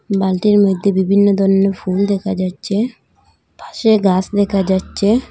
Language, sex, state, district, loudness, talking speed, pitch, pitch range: Bengali, female, Assam, Hailakandi, -15 LUFS, 125 wpm, 195 Hz, 190-205 Hz